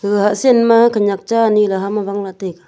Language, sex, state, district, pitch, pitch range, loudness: Wancho, female, Arunachal Pradesh, Longding, 205 Hz, 200-230 Hz, -14 LUFS